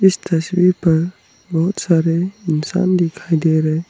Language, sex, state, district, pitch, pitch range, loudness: Hindi, male, Arunachal Pradesh, Lower Dibang Valley, 170 Hz, 160-185 Hz, -17 LUFS